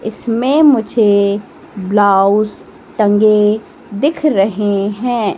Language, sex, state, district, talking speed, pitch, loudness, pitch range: Hindi, female, Madhya Pradesh, Katni, 80 wpm, 210 Hz, -13 LUFS, 200-230 Hz